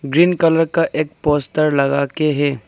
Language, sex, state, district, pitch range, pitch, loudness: Hindi, male, Arunachal Pradesh, Lower Dibang Valley, 140-165 Hz, 150 Hz, -17 LUFS